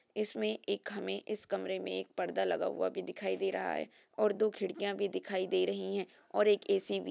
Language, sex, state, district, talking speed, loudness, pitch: Hindi, female, Uttar Pradesh, Jyotiba Phule Nagar, 235 wpm, -35 LUFS, 195 Hz